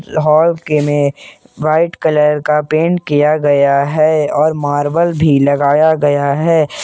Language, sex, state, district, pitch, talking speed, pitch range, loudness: Hindi, male, Jharkhand, Ranchi, 150 Hz, 140 wpm, 145-160 Hz, -13 LUFS